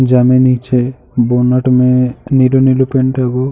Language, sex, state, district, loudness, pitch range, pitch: Hindi, male, Uttar Pradesh, Jalaun, -12 LUFS, 125-130 Hz, 125 Hz